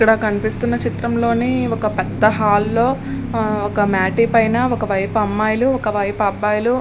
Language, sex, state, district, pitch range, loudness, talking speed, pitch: Telugu, female, Andhra Pradesh, Srikakulam, 205-230 Hz, -18 LUFS, 130 wpm, 215 Hz